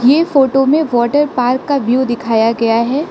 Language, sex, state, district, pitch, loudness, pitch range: Hindi, female, Arunachal Pradesh, Lower Dibang Valley, 260 Hz, -13 LUFS, 240-285 Hz